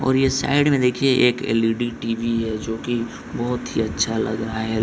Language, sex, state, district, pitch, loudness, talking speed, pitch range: Hindi, male, Bihar, East Champaran, 120 Hz, -21 LUFS, 135 wpm, 115-130 Hz